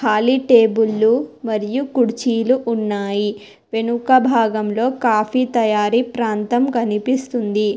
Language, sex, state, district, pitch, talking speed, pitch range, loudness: Telugu, female, Telangana, Hyderabad, 230 Hz, 85 wpm, 215-245 Hz, -18 LUFS